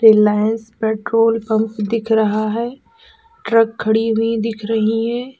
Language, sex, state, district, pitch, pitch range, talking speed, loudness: Hindi, female, Uttar Pradesh, Lalitpur, 225 Hz, 220-230 Hz, 135 wpm, -17 LUFS